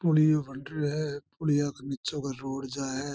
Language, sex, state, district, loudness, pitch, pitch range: Marwari, male, Rajasthan, Churu, -30 LUFS, 145 Hz, 135-150 Hz